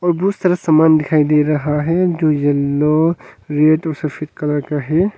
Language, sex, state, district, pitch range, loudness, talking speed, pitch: Hindi, male, Arunachal Pradesh, Longding, 150-165 Hz, -16 LUFS, 185 wpm, 155 Hz